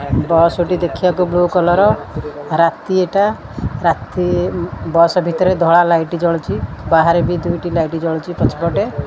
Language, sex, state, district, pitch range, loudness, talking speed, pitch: Odia, female, Odisha, Khordha, 165-180 Hz, -15 LUFS, 125 wpm, 170 Hz